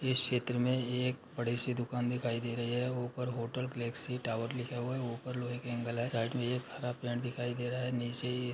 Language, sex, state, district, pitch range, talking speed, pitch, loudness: Hindi, male, Uttar Pradesh, Muzaffarnagar, 120-125 Hz, 220 wpm, 125 Hz, -36 LUFS